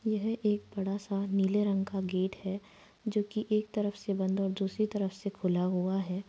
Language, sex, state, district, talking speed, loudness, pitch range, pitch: Hindi, female, Chhattisgarh, Kabirdham, 210 wpm, -32 LUFS, 190-210 Hz, 200 Hz